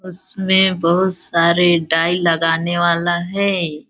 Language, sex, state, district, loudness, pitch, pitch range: Hindi, female, Chhattisgarh, Balrampur, -16 LUFS, 175 Hz, 170-185 Hz